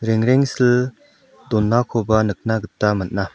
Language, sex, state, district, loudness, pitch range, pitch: Garo, male, Meghalaya, South Garo Hills, -19 LUFS, 105-125 Hz, 115 Hz